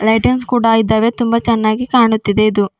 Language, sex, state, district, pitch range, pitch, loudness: Kannada, female, Karnataka, Bidar, 215-235 Hz, 225 Hz, -14 LUFS